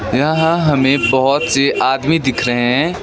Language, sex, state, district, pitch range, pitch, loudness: Hindi, male, West Bengal, Darjeeling, 130-150 Hz, 135 Hz, -14 LUFS